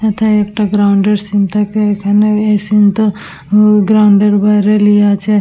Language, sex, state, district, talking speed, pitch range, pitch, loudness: Bengali, female, West Bengal, Dakshin Dinajpur, 175 wpm, 205-210 Hz, 210 Hz, -11 LUFS